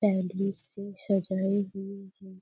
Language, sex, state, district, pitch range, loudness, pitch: Hindi, female, Bihar, Bhagalpur, 190-200 Hz, -31 LUFS, 195 Hz